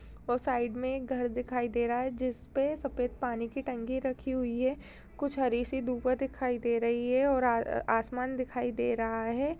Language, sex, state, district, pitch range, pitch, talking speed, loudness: Hindi, female, Bihar, Purnia, 240-260 Hz, 250 Hz, 195 wpm, -32 LUFS